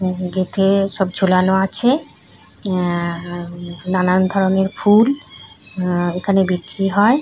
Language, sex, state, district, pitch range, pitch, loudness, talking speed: Bengali, female, West Bengal, North 24 Parganas, 180-195 Hz, 185 Hz, -17 LUFS, 115 wpm